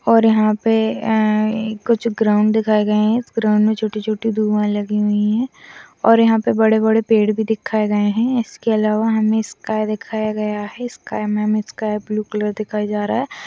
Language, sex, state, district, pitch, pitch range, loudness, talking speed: Hindi, female, Bihar, Purnia, 215 Hz, 210-225 Hz, -18 LUFS, 190 wpm